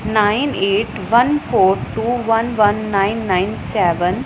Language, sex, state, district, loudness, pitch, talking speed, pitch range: Punjabi, female, Punjab, Pathankot, -17 LUFS, 210 Hz, 140 wpm, 190-230 Hz